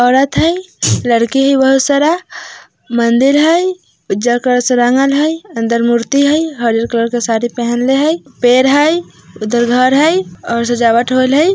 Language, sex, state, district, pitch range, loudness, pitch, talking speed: Bajjika, female, Bihar, Vaishali, 235-290 Hz, -12 LUFS, 255 Hz, 160 wpm